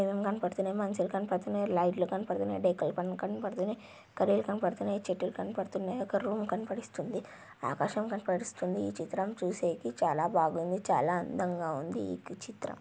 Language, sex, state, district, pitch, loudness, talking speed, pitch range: Telugu, female, Andhra Pradesh, Anantapur, 185 Hz, -33 LUFS, 120 wpm, 175-200 Hz